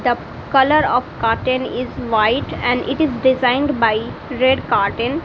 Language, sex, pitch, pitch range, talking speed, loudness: English, female, 255 Hz, 240-270 Hz, 150 wpm, -17 LUFS